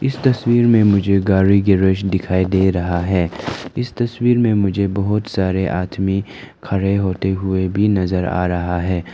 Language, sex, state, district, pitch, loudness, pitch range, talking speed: Hindi, male, Arunachal Pradesh, Lower Dibang Valley, 95 Hz, -17 LUFS, 95-105 Hz, 170 wpm